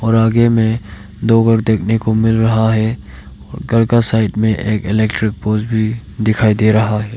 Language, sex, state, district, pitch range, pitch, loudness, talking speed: Hindi, male, Arunachal Pradesh, Lower Dibang Valley, 105-115 Hz, 110 Hz, -14 LUFS, 190 wpm